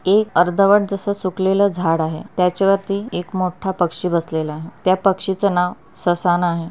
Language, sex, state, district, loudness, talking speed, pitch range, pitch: Marathi, female, Maharashtra, Pune, -19 LUFS, 170 wpm, 175-195 Hz, 185 Hz